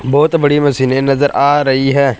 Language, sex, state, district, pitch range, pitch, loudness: Hindi, male, Punjab, Fazilka, 135-145 Hz, 140 Hz, -12 LUFS